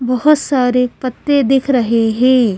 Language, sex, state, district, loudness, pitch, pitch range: Hindi, female, Madhya Pradesh, Bhopal, -14 LUFS, 250 Hz, 245-270 Hz